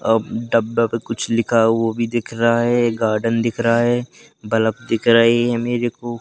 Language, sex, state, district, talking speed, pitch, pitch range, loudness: Hindi, male, Madhya Pradesh, Katni, 195 wpm, 115 Hz, 115-120 Hz, -18 LUFS